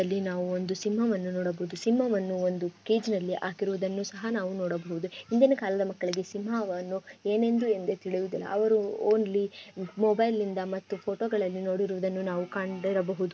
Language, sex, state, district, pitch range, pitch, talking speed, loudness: Kannada, female, Karnataka, Gulbarga, 185-210 Hz, 195 Hz, 125 wpm, -29 LUFS